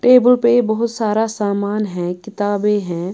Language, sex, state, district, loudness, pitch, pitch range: Hindi, female, Bihar, Patna, -17 LUFS, 210 Hz, 200-230 Hz